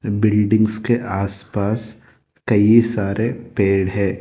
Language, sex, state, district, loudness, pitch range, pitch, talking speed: Hindi, male, Telangana, Hyderabad, -18 LUFS, 100-115 Hz, 105 Hz, 100 wpm